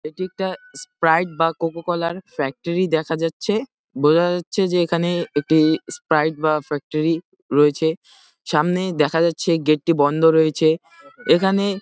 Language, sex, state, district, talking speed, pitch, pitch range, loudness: Bengali, male, West Bengal, Jalpaiguri, 140 wpm, 165 Hz, 155-180 Hz, -20 LUFS